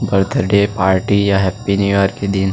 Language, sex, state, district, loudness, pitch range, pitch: Chhattisgarhi, male, Chhattisgarh, Sarguja, -15 LUFS, 95-100 Hz, 100 Hz